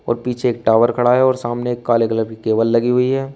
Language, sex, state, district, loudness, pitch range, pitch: Hindi, male, Uttar Pradesh, Shamli, -17 LUFS, 115-125 Hz, 120 Hz